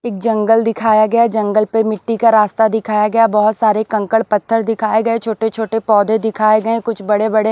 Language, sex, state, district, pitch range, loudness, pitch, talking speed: Hindi, female, Odisha, Nuapada, 215-225 Hz, -14 LUFS, 220 Hz, 200 wpm